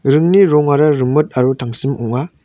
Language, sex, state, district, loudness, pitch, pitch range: Garo, male, Meghalaya, West Garo Hills, -14 LUFS, 140 Hz, 130-150 Hz